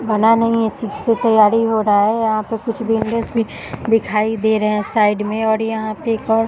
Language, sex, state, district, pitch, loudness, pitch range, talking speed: Hindi, female, Bihar, Jahanabad, 220 Hz, -17 LUFS, 215-225 Hz, 240 wpm